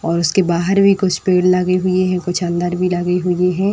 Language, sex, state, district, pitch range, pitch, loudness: Hindi, female, Uttar Pradesh, Etah, 175-185 Hz, 180 Hz, -16 LUFS